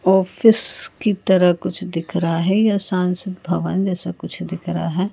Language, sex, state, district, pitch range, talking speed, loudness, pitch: Hindi, female, Goa, North and South Goa, 180-190 Hz, 175 wpm, -19 LUFS, 185 Hz